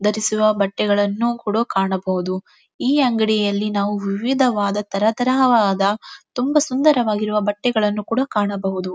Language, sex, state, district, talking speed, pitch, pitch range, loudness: Kannada, female, Karnataka, Dharwad, 85 wpm, 210 Hz, 200-235 Hz, -19 LUFS